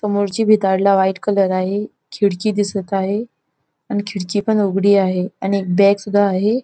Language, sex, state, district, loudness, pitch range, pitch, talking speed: Marathi, female, Goa, North and South Goa, -17 LUFS, 195-205 Hz, 200 Hz, 165 wpm